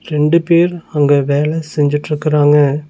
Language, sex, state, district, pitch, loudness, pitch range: Tamil, male, Tamil Nadu, Nilgiris, 150 Hz, -13 LUFS, 145-160 Hz